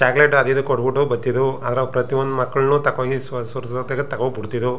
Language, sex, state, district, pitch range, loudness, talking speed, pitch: Kannada, male, Karnataka, Chamarajanagar, 125-135 Hz, -20 LUFS, 160 wpm, 130 Hz